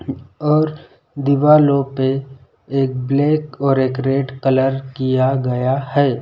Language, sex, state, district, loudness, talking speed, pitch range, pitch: Hindi, male, Madhya Pradesh, Bhopal, -17 LUFS, 115 wpm, 130-140 Hz, 135 Hz